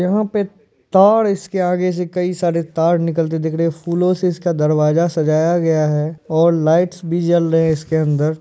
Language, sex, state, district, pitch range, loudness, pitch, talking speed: Hindi, male, Bihar, Purnia, 160-180 Hz, -17 LUFS, 170 Hz, 200 wpm